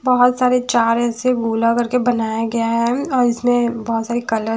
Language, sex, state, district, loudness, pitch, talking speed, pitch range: Hindi, female, Haryana, Charkhi Dadri, -17 LUFS, 240 Hz, 195 wpm, 230-250 Hz